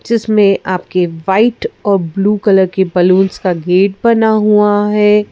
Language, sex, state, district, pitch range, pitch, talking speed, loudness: Hindi, female, Madhya Pradesh, Bhopal, 185-210 Hz, 200 Hz, 145 wpm, -12 LUFS